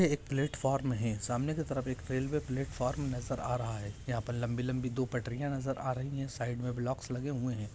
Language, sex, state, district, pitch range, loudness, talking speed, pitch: Hindi, male, Jharkhand, Jamtara, 120-135 Hz, -35 LUFS, 215 wpm, 130 Hz